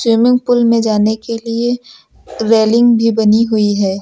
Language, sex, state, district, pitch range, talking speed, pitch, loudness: Hindi, male, Uttar Pradesh, Lucknow, 220-235 Hz, 165 wpm, 230 Hz, -13 LUFS